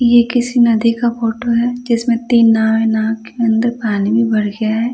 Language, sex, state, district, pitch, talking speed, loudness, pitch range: Hindi, female, Odisha, Nuapada, 230 Hz, 220 wpm, -15 LUFS, 225-240 Hz